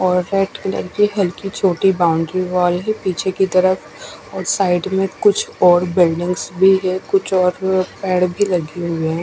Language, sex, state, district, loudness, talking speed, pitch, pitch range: Hindi, female, Odisha, Khordha, -17 LUFS, 175 wpm, 185 Hz, 180-195 Hz